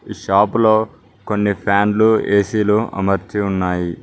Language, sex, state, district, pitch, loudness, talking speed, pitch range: Telugu, male, Telangana, Mahabubabad, 105 Hz, -17 LUFS, 105 wpm, 100-110 Hz